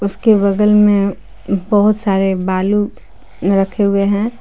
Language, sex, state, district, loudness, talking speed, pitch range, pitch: Hindi, female, Jharkhand, Palamu, -14 LUFS, 120 wpm, 195-210 Hz, 200 Hz